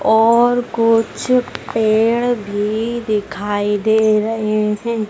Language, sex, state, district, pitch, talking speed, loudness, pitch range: Hindi, female, Madhya Pradesh, Dhar, 220 Hz, 95 wpm, -16 LUFS, 210-230 Hz